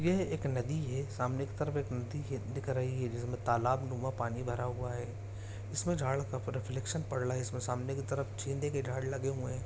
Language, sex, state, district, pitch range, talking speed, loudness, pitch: Hindi, male, Bihar, Samastipur, 120-135 Hz, 200 wpm, -36 LUFS, 125 Hz